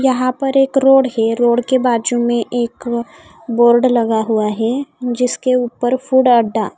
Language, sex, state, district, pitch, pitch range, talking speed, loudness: Hindi, female, Odisha, Khordha, 245 Hz, 235-255 Hz, 160 wpm, -15 LUFS